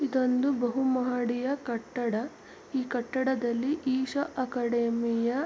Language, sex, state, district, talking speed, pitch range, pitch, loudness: Kannada, female, Karnataka, Mysore, 90 wpm, 240-265 Hz, 255 Hz, -29 LUFS